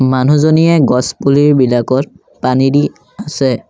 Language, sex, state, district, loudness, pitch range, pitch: Assamese, male, Assam, Sonitpur, -12 LUFS, 130-145 Hz, 135 Hz